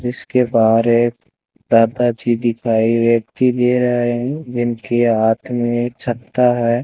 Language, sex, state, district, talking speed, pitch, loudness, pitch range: Hindi, male, Rajasthan, Bikaner, 125 wpm, 120 Hz, -16 LUFS, 115-125 Hz